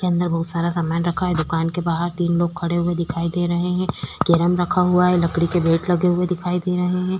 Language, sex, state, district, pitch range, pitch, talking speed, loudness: Hindi, female, Chhattisgarh, Korba, 170-180 Hz, 175 Hz, 260 wpm, -20 LUFS